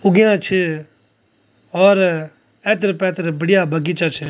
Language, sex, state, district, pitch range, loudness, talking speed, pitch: Garhwali, male, Uttarakhand, Tehri Garhwal, 155-195 Hz, -17 LUFS, 100 wpm, 175 Hz